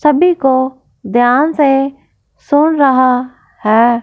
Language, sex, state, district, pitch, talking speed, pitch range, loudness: Hindi, female, Punjab, Fazilka, 265 Hz, 105 wpm, 245-295 Hz, -12 LUFS